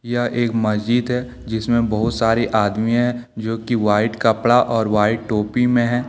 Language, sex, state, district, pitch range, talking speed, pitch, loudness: Hindi, male, Jharkhand, Deoghar, 110-120 Hz, 165 wpm, 115 Hz, -19 LUFS